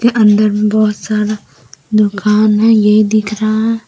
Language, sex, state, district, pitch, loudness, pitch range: Hindi, female, Jharkhand, Deoghar, 215 Hz, -12 LUFS, 210-215 Hz